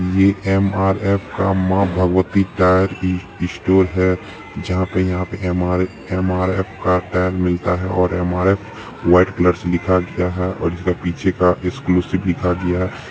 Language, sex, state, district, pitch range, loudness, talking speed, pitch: Maithili, male, Bihar, Supaul, 90-95 Hz, -18 LUFS, 155 wpm, 90 Hz